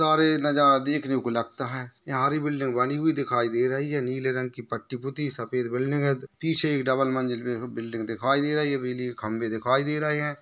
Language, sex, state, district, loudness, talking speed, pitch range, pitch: Hindi, male, Maharashtra, Nagpur, -26 LUFS, 235 wpm, 125-145 Hz, 130 Hz